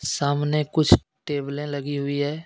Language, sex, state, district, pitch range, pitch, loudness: Hindi, male, Jharkhand, Deoghar, 140-150 Hz, 145 Hz, -23 LUFS